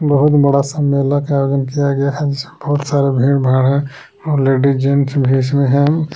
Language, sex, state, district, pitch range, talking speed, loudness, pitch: Hindi, male, Jharkhand, Palamu, 135-145 Hz, 165 wpm, -15 LUFS, 140 Hz